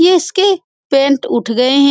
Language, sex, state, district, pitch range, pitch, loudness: Hindi, female, Bihar, Saran, 270-365 Hz, 280 Hz, -13 LUFS